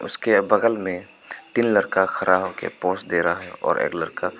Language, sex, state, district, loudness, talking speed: Hindi, male, Arunachal Pradesh, Papum Pare, -22 LUFS, 190 wpm